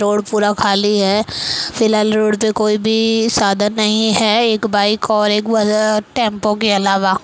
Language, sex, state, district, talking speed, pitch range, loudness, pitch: Hindi, female, Maharashtra, Mumbai Suburban, 165 wpm, 205-220 Hz, -15 LUFS, 215 Hz